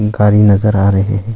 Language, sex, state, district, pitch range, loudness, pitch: Hindi, male, Arunachal Pradesh, Longding, 100-105 Hz, -11 LUFS, 105 Hz